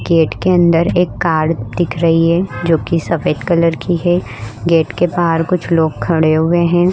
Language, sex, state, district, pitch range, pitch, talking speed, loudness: Hindi, female, Uttar Pradesh, Budaun, 160-175 Hz, 165 Hz, 180 wpm, -14 LUFS